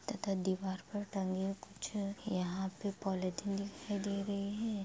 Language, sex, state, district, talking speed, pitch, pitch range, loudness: Hindi, female, Bihar, Darbhanga, 150 wpm, 200 Hz, 190-205 Hz, -39 LUFS